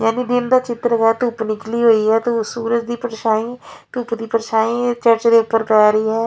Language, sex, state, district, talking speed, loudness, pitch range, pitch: Punjabi, female, Punjab, Fazilka, 220 wpm, -17 LUFS, 225-240 Hz, 230 Hz